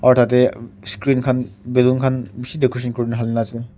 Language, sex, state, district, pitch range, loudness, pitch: Nagamese, male, Nagaland, Kohima, 115-125 Hz, -19 LUFS, 125 Hz